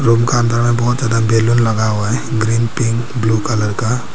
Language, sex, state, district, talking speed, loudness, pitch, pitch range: Hindi, male, Arunachal Pradesh, Papum Pare, 200 wpm, -15 LUFS, 115 Hz, 110-120 Hz